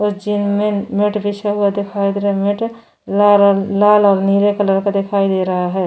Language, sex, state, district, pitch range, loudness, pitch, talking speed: Hindi, female, Goa, North and South Goa, 200-205 Hz, -15 LUFS, 200 Hz, 225 wpm